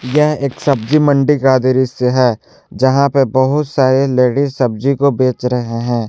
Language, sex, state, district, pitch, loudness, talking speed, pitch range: Hindi, male, Jharkhand, Ranchi, 130 Hz, -14 LUFS, 170 wpm, 125-140 Hz